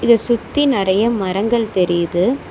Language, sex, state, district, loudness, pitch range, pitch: Tamil, female, Tamil Nadu, Chennai, -17 LUFS, 190-235 Hz, 220 Hz